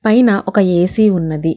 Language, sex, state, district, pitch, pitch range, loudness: Telugu, female, Telangana, Hyderabad, 195 Hz, 175-220 Hz, -13 LUFS